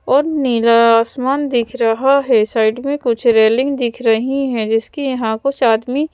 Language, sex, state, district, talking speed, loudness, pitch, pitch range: Hindi, female, Madhya Pradesh, Bhopal, 165 wpm, -15 LUFS, 240 Hz, 230-275 Hz